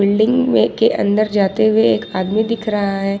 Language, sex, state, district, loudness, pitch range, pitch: Hindi, female, Jharkhand, Ranchi, -16 LUFS, 200-220 Hz, 210 Hz